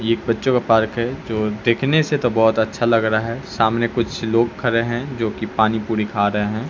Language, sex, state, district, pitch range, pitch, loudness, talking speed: Hindi, male, Bihar, Katihar, 110-120 Hz, 115 Hz, -19 LUFS, 240 wpm